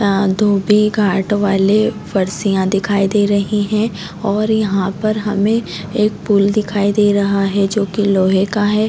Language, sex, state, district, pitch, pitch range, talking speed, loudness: Hindi, female, Chhattisgarh, Raigarh, 205 Hz, 195-210 Hz, 160 wpm, -15 LUFS